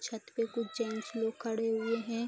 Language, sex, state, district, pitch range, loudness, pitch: Hindi, female, Bihar, Araria, 225-230 Hz, -35 LUFS, 225 Hz